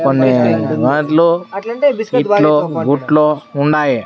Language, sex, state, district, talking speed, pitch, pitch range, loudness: Telugu, male, Andhra Pradesh, Sri Satya Sai, 75 wpm, 150 Hz, 140-170 Hz, -14 LUFS